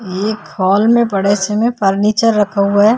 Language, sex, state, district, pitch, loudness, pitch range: Hindi, female, Maharashtra, Chandrapur, 205 Hz, -14 LUFS, 195-220 Hz